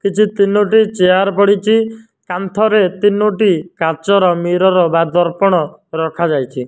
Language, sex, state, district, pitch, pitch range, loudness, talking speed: Odia, male, Odisha, Nuapada, 195 Hz, 175-210 Hz, -14 LUFS, 90 wpm